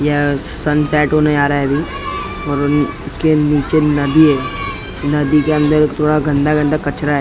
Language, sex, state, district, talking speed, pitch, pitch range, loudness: Hindi, male, Maharashtra, Mumbai Suburban, 185 wpm, 150 Hz, 145-150 Hz, -15 LUFS